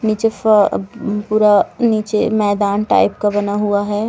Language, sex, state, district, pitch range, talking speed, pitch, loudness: Hindi, female, Bihar, Gopalganj, 205-215 Hz, 145 wpm, 210 Hz, -16 LUFS